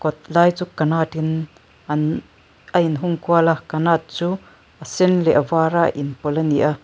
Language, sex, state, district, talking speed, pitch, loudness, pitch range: Mizo, female, Mizoram, Aizawl, 195 wpm, 160 Hz, -19 LUFS, 150-170 Hz